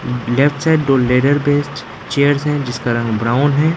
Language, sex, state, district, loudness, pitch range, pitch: Hindi, male, Arunachal Pradesh, Lower Dibang Valley, -15 LUFS, 125-145 Hz, 140 Hz